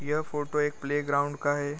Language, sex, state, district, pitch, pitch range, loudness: Hindi, male, Bihar, Gopalganj, 145 Hz, 145-150 Hz, -29 LUFS